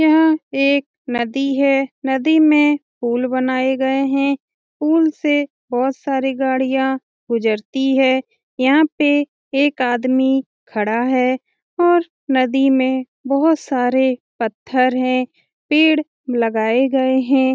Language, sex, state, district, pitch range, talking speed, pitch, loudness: Hindi, female, Bihar, Lakhisarai, 255-290 Hz, 115 wpm, 265 Hz, -17 LUFS